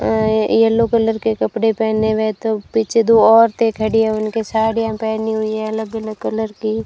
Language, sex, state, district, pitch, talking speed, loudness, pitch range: Hindi, female, Rajasthan, Bikaner, 220 Hz, 190 wpm, -16 LUFS, 220-225 Hz